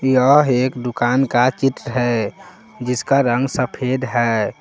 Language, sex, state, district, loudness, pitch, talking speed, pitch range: Hindi, male, Jharkhand, Palamu, -18 LUFS, 125 Hz, 130 wpm, 120-135 Hz